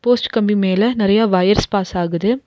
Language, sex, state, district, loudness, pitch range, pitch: Tamil, female, Tamil Nadu, Nilgiris, -16 LUFS, 190-225 Hz, 205 Hz